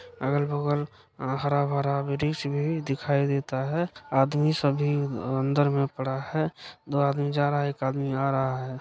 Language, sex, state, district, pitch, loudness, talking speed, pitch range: Maithili, male, Bihar, Supaul, 140 Hz, -27 LUFS, 165 wpm, 135-145 Hz